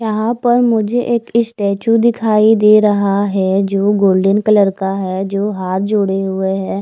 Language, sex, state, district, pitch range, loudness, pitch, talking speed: Hindi, female, Chandigarh, Chandigarh, 195-225 Hz, -14 LUFS, 205 Hz, 165 wpm